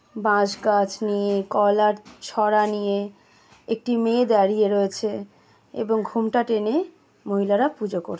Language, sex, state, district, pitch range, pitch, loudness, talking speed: Bengali, female, West Bengal, Jalpaiguri, 200-225 Hz, 210 Hz, -22 LUFS, 125 wpm